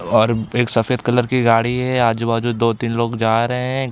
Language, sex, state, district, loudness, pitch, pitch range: Hindi, male, Chhattisgarh, Bilaspur, -18 LUFS, 120 Hz, 115-125 Hz